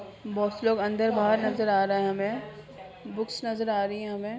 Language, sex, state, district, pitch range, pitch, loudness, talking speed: Hindi, female, Bihar, Purnia, 200-220 Hz, 210 Hz, -27 LUFS, 205 wpm